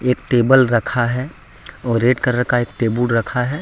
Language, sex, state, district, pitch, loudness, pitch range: Hindi, male, Jharkhand, Deoghar, 125 Hz, -17 LUFS, 120-125 Hz